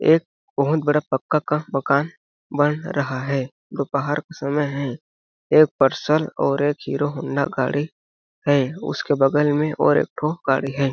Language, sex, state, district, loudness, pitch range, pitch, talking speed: Hindi, male, Chhattisgarh, Balrampur, -21 LUFS, 135-150 Hz, 145 Hz, 160 wpm